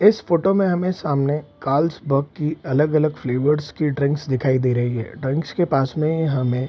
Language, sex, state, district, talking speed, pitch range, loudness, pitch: Hindi, male, Bihar, Araria, 190 wpm, 135-160 Hz, -21 LUFS, 145 Hz